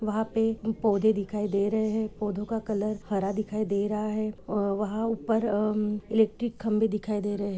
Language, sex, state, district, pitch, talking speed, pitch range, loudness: Hindi, female, Goa, North and South Goa, 215 Hz, 205 wpm, 205-220 Hz, -28 LUFS